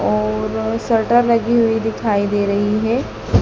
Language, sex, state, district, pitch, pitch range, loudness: Hindi, female, Madhya Pradesh, Dhar, 220 Hz, 205-230 Hz, -17 LUFS